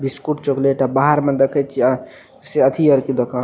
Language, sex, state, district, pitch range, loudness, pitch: Maithili, male, Bihar, Madhepura, 130-140 Hz, -17 LUFS, 135 Hz